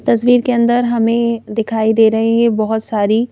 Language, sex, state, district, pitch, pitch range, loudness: Hindi, female, Madhya Pradesh, Bhopal, 230 Hz, 220-235 Hz, -14 LUFS